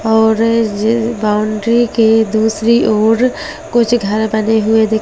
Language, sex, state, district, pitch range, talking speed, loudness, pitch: Hindi, female, Delhi, New Delhi, 220-230 Hz, 170 wpm, -13 LUFS, 220 Hz